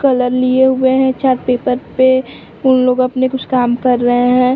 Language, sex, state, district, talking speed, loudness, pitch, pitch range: Hindi, female, Uttar Pradesh, Varanasi, 195 wpm, -13 LUFS, 255 Hz, 250-260 Hz